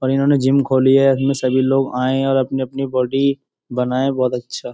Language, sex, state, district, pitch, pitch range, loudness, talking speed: Hindi, male, Uttar Pradesh, Jyotiba Phule Nagar, 135 Hz, 130-135 Hz, -17 LUFS, 200 wpm